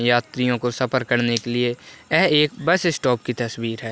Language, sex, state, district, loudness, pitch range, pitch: Hindi, male, Chhattisgarh, Raigarh, -21 LUFS, 120-130 Hz, 120 Hz